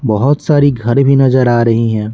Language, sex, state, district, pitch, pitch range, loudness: Hindi, male, Bihar, Patna, 125 Hz, 115-140 Hz, -11 LUFS